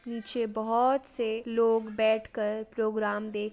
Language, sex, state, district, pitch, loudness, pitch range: Hindi, female, Uttar Pradesh, Jalaun, 220 Hz, -28 LUFS, 215-230 Hz